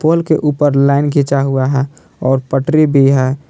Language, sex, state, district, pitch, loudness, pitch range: Hindi, male, Jharkhand, Palamu, 140 Hz, -13 LUFS, 135-150 Hz